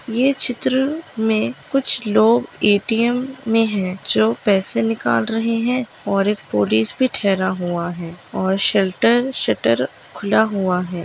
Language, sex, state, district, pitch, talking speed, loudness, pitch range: Hindi, female, Maharashtra, Dhule, 210 Hz, 140 wpm, -19 LUFS, 185-240 Hz